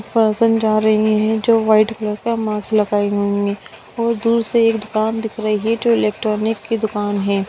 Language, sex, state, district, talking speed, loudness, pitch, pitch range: Hindi, female, Bihar, Bhagalpur, 200 wpm, -17 LUFS, 215 Hz, 210-225 Hz